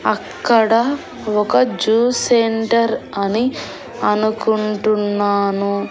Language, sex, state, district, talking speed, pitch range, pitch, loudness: Telugu, female, Andhra Pradesh, Annamaya, 60 wpm, 205-230 Hz, 215 Hz, -17 LUFS